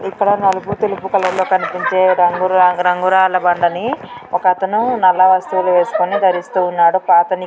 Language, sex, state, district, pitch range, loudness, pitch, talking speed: Telugu, female, Andhra Pradesh, Guntur, 180-195 Hz, -14 LUFS, 185 Hz, 150 wpm